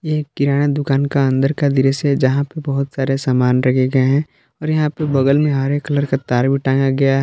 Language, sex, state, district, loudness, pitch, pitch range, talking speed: Hindi, male, Jharkhand, Palamu, -17 LUFS, 140 Hz, 135-145 Hz, 240 wpm